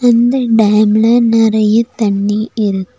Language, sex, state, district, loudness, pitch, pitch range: Tamil, female, Tamil Nadu, Nilgiris, -12 LUFS, 220 Hz, 210-235 Hz